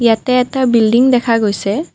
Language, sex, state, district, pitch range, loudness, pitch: Assamese, female, Assam, Kamrup Metropolitan, 225-255 Hz, -13 LUFS, 240 Hz